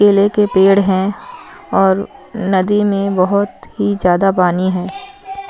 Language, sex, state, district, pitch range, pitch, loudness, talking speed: Hindi, female, Punjab, Fazilka, 190-205 Hz, 195 Hz, -14 LUFS, 130 wpm